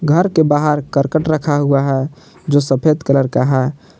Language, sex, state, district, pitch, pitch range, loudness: Hindi, male, Jharkhand, Palamu, 145 Hz, 135-155 Hz, -15 LUFS